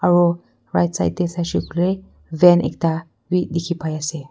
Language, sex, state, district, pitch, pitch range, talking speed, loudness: Nagamese, female, Nagaland, Kohima, 165 Hz, 150-175 Hz, 140 wpm, -20 LUFS